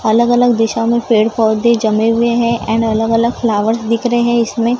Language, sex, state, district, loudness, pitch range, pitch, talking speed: Hindi, female, Maharashtra, Gondia, -13 LUFS, 225-235 Hz, 230 Hz, 175 wpm